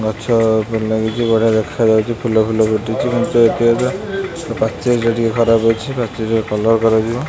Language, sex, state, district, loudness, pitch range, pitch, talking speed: Odia, male, Odisha, Khordha, -16 LUFS, 110-120 Hz, 115 Hz, 150 wpm